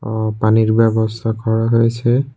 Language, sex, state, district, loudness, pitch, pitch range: Bengali, male, Tripura, West Tripura, -16 LUFS, 110 Hz, 110-115 Hz